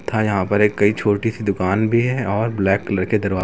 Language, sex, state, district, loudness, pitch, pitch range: Hindi, male, Uttar Pradesh, Lucknow, -19 LUFS, 105 Hz, 100-110 Hz